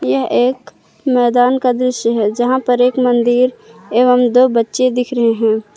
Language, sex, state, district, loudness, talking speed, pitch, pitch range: Hindi, female, Jharkhand, Palamu, -14 LUFS, 165 wpm, 245 Hz, 230-255 Hz